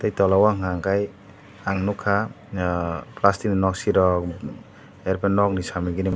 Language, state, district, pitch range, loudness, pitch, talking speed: Kokborok, Tripura, Dhalai, 90-100 Hz, -23 LUFS, 95 Hz, 175 wpm